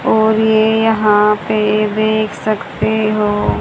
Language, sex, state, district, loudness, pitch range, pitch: Hindi, female, Haryana, Charkhi Dadri, -14 LUFS, 210-220 Hz, 215 Hz